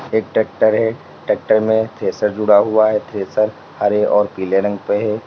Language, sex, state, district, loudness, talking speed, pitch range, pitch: Hindi, male, Uttar Pradesh, Lalitpur, -17 LUFS, 180 wpm, 105-110 Hz, 110 Hz